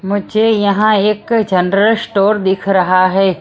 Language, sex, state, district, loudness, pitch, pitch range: Hindi, female, Maharashtra, Mumbai Suburban, -13 LUFS, 200 Hz, 190-215 Hz